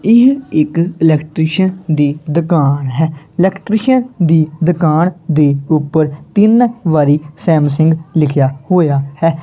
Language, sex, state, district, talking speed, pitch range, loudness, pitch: Punjabi, male, Punjab, Kapurthala, 110 wpm, 150-180 Hz, -13 LUFS, 160 Hz